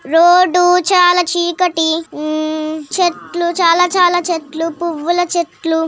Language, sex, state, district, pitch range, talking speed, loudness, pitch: Telugu, female, Telangana, Karimnagar, 320-355 Hz, 90 wpm, -14 LUFS, 345 Hz